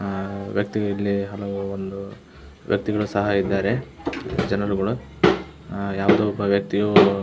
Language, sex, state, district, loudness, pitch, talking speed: Kannada, male, Karnataka, Belgaum, -23 LUFS, 100 Hz, 115 wpm